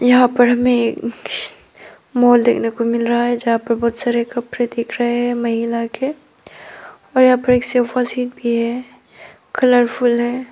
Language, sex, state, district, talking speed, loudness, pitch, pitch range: Hindi, female, Arunachal Pradesh, Papum Pare, 170 wpm, -17 LUFS, 240 Hz, 235-250 Hz